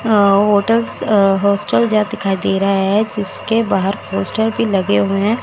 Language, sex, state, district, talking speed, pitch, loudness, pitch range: Hindi, female, Chandigarh, Chandigarh, 165 wpm, 200 Hz, -15 LUFS, 195-220 Hz